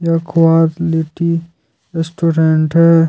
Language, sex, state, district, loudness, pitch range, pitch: Hindi, male, Jharkhand, Deoghar, -14 LUFS, 160-165 Hz, 165 Hz